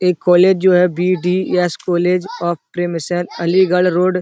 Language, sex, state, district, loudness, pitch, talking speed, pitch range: Hindi, male, Uttar Pradesh, Etah, -15 LUFS, 180 Hz, 155 wpm, 175-180 Hz